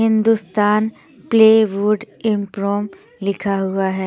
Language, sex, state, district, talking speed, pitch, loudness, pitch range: Hindi, female, Odisha, Sambalpur, 90 wpm, 210 Hz, -17 LUFS, 200-220 Hz